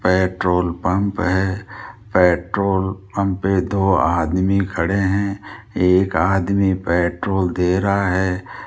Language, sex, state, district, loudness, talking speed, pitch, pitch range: Hindi, male, Rajasthan, Jaipur, -19 LUFS, 110 wpm, 95 Hz, 90-95 Hz